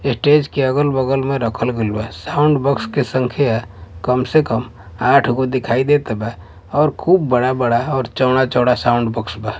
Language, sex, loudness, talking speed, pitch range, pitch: Bhojpuri, male, -17 LUFS, 170 wpm, 115-135 Hz, 125 Hz